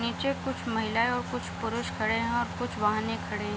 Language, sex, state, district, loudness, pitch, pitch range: Hindi, female, Bihar, Sitamarhi, -30 LUFS, 225 Hz, 215-235 Hz